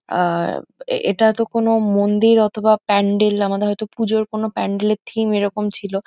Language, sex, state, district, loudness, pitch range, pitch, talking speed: Bengali, female, West Bengal, North 24 Parganas, -18 LUFS, 205-220 Hz, 210 Hz, 170 wpm